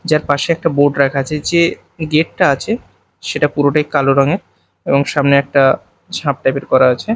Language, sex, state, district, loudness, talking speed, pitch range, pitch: Bengali, male, Odisha, Malkangiri, -15 LUFS, 185 wpm, 140-160 Hz, 145 Hz